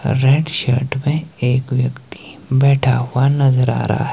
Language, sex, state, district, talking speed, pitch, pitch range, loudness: Hindi, male, Himachal Pradesh, Shimla, 145 wpm, 130 Hz, 125-140 Hz, -16 LUFS